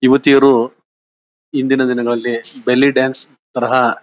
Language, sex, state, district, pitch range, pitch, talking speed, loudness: Kannada, male, Karnataka, Bijapur, 120-135 Hz, 130 Hz, 90 wpm, -14 LUFS